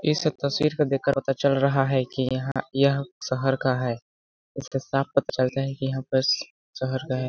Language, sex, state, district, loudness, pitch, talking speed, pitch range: Hindi, male, Chhattisgarh, Balrampur, -25 LUFS, 135 Hz, 215 wpm, 130-140 Hz